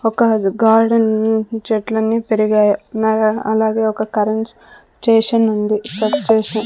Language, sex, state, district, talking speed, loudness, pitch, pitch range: Telugu, female, Andhra Pradesh, Sri Satya Sai, 100 wpm, -16 LUFS, 220 Hz, 215-225 Hz